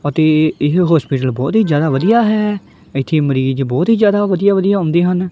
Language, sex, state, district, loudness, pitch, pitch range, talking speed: Punjabi, female, Punjab, Kapurthala, -14 LUFS, 165 Hz, 140-200 Hz, 190 wpm